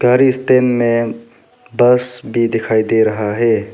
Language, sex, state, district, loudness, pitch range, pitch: Hindi, male, Arunachal Pradesh, Papum Pare, -14 LUFS, 110-125 Hz, 115 Hz